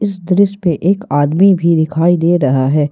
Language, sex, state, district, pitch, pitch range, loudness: Hindi, male, Jharkhand, Ranchi, 170 Hz, 150-195 Hz, -13 LUFS